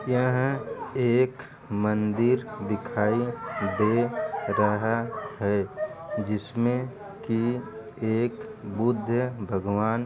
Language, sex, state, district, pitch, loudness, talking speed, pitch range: Hindi, male, Uttar Pradesh, Varanasi, 120 Hz, -27 LUFS, 80 wpm, 105-125 Hz